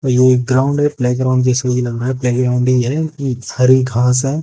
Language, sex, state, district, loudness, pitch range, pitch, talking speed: Hindi, male, Haryana, Jhajjar, -15 LUFS, 125-130 Hz, 130 Hz, 255 wpm